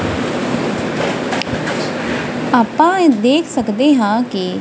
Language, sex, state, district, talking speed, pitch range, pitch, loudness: Punjabi, female, Punjab, Kapurthala, 80 wpm, 230-295 Hz, 255 Hz, -16 LUFS